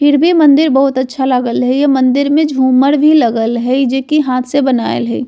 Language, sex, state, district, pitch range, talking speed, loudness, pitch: Bajjika, female, Bihar, Vaishali, 255-290 Hz, 225 wpm, -11 LUFS, 270 Hz